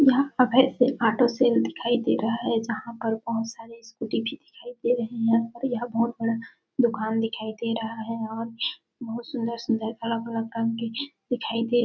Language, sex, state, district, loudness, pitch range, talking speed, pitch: Hindi, female, Chhattisgarh, Balrampur, -26 LUFS, 225-245 Hz, 180 wpm, 230 Hz